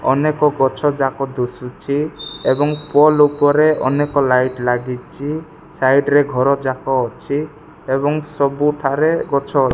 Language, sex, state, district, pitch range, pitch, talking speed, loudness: Odia, male, Odisha, Malkangiri, 130-150 Hz, 140 Hz, 125 wpm, -17 LUFS